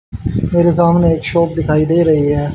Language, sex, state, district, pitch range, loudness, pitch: Hindi, male, Haryana, Rohtak, 145-170 Hz, -14 LUFS, 160 Hz